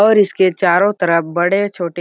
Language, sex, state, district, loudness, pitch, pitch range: Hindi, male, Chhattisgarh, Balrampur, -15 LUFS, 185 Hz, 175-200 Hz